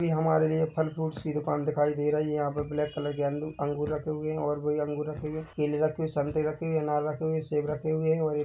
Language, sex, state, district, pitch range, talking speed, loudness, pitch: Hindi, male, Chhattisgarh, Bilaspur, 150-155 Hz, 320 wpm, -29 LUFS, 150 Hz